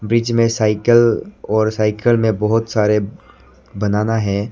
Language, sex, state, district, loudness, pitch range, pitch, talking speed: Hindi, male, Arunachal Pradesh, Lower Dibang Valley, -16 LUFS, 105-115 Hz, 110 Hz, 135 wpm